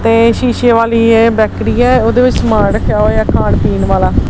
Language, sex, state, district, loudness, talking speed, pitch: Punjabi, female, Punjab, Kapurthala, -11 LUFS, 195 wpm, 225 Hz